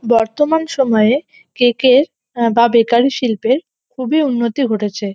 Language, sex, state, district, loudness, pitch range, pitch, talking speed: Bengali, female, West Bengal, North 24 Parganas, -15 LUFS, 230-270 Hz, 240 Hz, 115 wpm